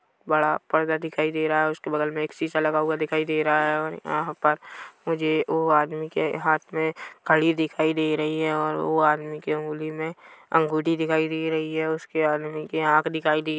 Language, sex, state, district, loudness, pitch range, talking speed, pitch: Hindi, male, Chhattisgarh, Rajnandgaon, -24 LUFS, 155-160 Hz, 205 wpm, 155 Hz